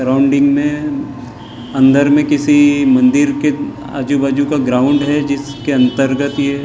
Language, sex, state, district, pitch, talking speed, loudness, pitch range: Hindi, male, Maharashtra, Gondia, 140 Hz, 135 wpm, -13 LUFS, 135-150 Hz